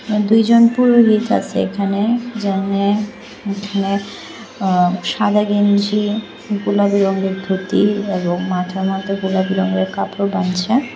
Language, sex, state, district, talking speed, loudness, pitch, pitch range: Bengali, female, Tripura, West Tripura, 105 wpm, -17 LUFS, 200 Hz, 190-210 Hz